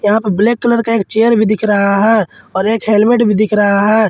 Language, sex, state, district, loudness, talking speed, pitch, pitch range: Hindi, male, Jharkhand, Ranchi, -12 LUFS, 265 wpm, 215 Hz, 205-225 Hz